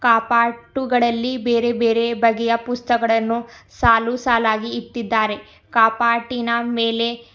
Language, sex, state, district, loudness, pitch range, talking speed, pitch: Kannada, female, Karnataka, Bidar, -19 LUFS, 230-235 Hz, 75 wpm, 235 Hz